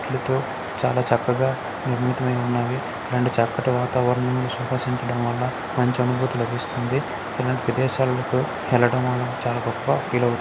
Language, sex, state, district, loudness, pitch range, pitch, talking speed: Telugu, male, Karnataka, Dharwad, -23 LUFS, 120-130 Hz, 125 Hz, 110 wpm